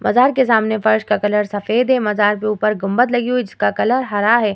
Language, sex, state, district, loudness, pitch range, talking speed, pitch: Hindi, female, Bihar, Vaishali, -16 LUFS, 210-245 Hz, 250 wpm, 220 Hz